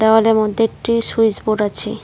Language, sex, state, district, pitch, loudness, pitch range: Bengali, female, West Bengal, Cooch Behar, 220 Hz, -16 LUFS, 215-225 Hz